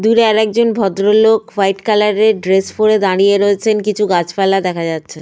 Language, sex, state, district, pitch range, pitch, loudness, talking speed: Bengali, female, Jharkhand, Sahebganj, 195-215 Hz, 205 Hz, -13 LUFS, 185 wpm